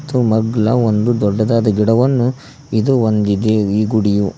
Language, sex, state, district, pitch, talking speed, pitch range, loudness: Kannada, male, Karnataka, Koppal, 110 Hz, 125 wpm, 105-120 Hz, -15 LUFS